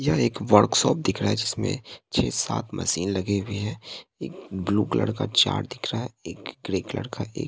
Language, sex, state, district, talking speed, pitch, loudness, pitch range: Hindi, male, Bihar, Katihar, 210 wpm, 105 Hz, -25 LUFS, 100-120 Hz